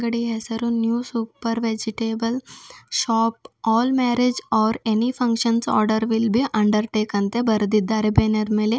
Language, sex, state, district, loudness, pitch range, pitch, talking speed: Kannada, female, Karnataka, Bidar, -21 LUFS, 220-235 Hz, 225 Hz, 135 wpm